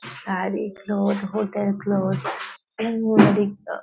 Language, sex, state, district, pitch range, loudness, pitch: Hindi, female, Maharashtra, Nagpur, 200-215 Hz, -23 LUFS, 205 Hz